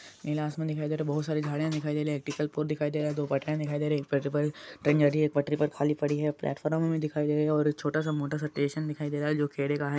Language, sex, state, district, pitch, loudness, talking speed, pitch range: Hindi, male, Andhra Pradesh, Anantapur, 150 Hz, -29 LUFS, 190 wpm, 145-150 Hz